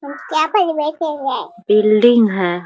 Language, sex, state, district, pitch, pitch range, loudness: Hindi, female, Bihar, Muzaffarpur, 260 Hz, 215-310 Hz, -16 LUFS